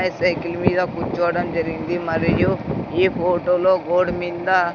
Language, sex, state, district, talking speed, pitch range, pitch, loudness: Telugu, male, Andhra Pradesh, Sri Satya Sai, 125 wpm, 170-180 Hz, 175 Hz, -20 LUFS